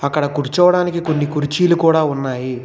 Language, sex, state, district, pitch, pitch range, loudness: Telugu, male, Telangana, Hyderabad, 150 Hz, 140-170 Hz, -16 LUFS